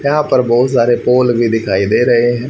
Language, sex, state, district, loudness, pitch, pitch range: Hindi, male, Haryana, Rohtak, -12 LUFS, 120 Hz, 115-125 Hz